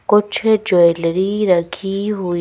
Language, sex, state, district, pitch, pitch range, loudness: Hindi, female, Madhya Pradesh, Bhopal, 195 Hz, 175-210 Hz, -16 LUFS